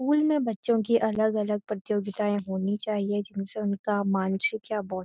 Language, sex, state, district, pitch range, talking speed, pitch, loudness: Hindi, female, Uttarakhand, Uttarkashi, 200-220 Hz, 165 wpm, 210 Hz, -27 LUFS